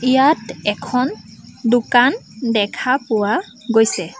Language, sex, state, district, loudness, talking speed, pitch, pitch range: Assamese, female, Assam, Sonitpur, -18 LUFS, 85 wpm, 235 Hz, 210-255 Hz